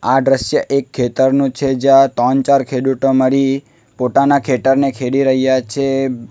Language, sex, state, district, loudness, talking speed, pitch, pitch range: Gujarati, male, Gujarat, Valsad, -14 LUFS, 145 wpm, 135 Hz, 130-135 Hz